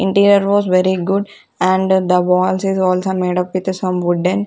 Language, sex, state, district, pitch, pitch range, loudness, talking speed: English, female, Punjab, Kapurthala, 185 Hz, 180-195 Hz, -15 LUFS, 200 wpm